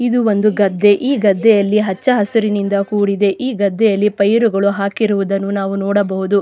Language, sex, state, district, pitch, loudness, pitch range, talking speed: Kannada, female, Karnataka, Dakshina Kannada, 205 Hz, -15 LUFS, 200-215 Hz, 130 wpm